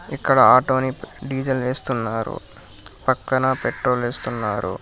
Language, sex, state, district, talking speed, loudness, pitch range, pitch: Telugu, male, Telangana, Hyderabad, 85 wpm, -20 LUFS, 115-130 Hz, 130 Hz